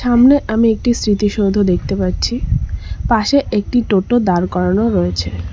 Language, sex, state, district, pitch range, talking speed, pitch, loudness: Bengali, female, West Bengal, Cooch Behar, 185-240 Hz, 140 wpm, 205 Hz, -15 LUFS